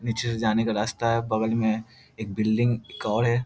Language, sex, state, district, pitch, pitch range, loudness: Hindi, male, Bihar, Jahanabad, 115 Hz, 110-115 Hz, -25 LUFS